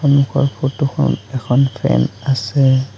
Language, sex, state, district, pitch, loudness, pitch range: Assamese, male, Assam, Sonitpur, 135 Hz, -16 LUFS, 125-140 Hz